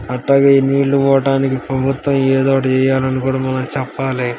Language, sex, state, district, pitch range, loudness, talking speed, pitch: Telugu, male, Andhra Pradesh, Srikakulam, 130-135 Hz, -15 LUFS, 110 wpm, 135 Hz